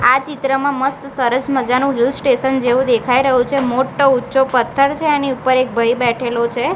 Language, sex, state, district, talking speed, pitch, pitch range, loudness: Gujarati, female, Gujarat, Gandhinagar, 185 wpm, 260 Hz, 245-275 Hz, -16 LUFS